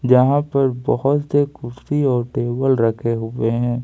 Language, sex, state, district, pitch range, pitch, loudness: Hindi, male, Jharkhand, Ranchi, 120-140 Hz, 125 Hz, -19 LUFS